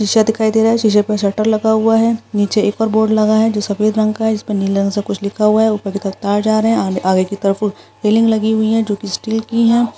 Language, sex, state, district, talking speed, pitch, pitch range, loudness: Hindi, female, West Bengal, Purulia, 295 wpm, 215 Hz, 205-220 Hz, -15 LUFS